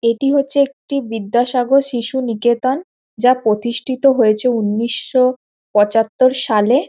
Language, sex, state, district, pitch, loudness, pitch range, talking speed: Bengali, female, West Bengal, Paschim Medinipur, 250 Hz, -16 LUFS, 230-265 Hz, 95 wpm